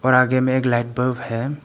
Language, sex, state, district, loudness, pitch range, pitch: Hindi, male, Arunachal Pradesh, Papum Pare, -20 LUFS, 120-130 Hz, 130 Hz